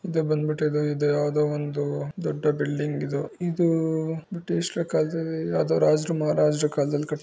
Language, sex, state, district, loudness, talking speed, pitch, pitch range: Kannada, female, Karnataka, Bijapur, -25 LUFS, 135 wpm, 150 Hz, 145-160 Hz